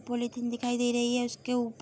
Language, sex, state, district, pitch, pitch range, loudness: Hindi, female, Bihar, Darbhanga, 245 Hz, 240-245 Hz, -30 LUFS